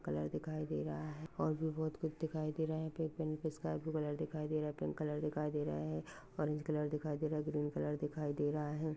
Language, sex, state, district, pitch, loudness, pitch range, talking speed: Hindi, male, Maharashtra, Pune, 150 Hz, -40 LUFS, 150-155 Hz, 280 wpm